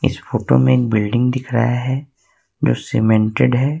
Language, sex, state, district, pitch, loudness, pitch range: Hindi, male, Jharkhand, Ranchi, 120 Hz, -17 LUFS, 110-130 Hz